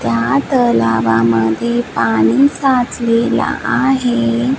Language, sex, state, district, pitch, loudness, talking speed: Marathi, female, Maharashtra, Washim, 235 Hz, -14 LUFS, 65 wpm